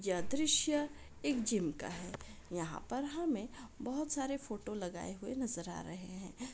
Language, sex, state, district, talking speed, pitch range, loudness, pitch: Hindi, female, Bihar, Araria, 165 wpm, 185-275 Hz, -38 LUFS, 245 Hz